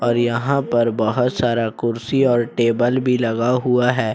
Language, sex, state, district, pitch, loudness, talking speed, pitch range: Hindi, male, Jharkhand, Ranchi, 120 Hz, -18 LUFS, 175 wpm, 115-125 Hz